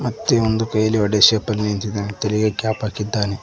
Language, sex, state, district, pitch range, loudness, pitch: Kannada, male, Karnataka, Koppal, 105-110 Hz, -19 LUFS, 110 Hz